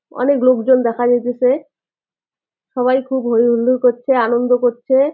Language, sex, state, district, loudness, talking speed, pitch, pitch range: Bengali, female, West Bengal, Jalpaiguri, -15 LUFS, 115 wpm, 250 Hz, 245-260 Hz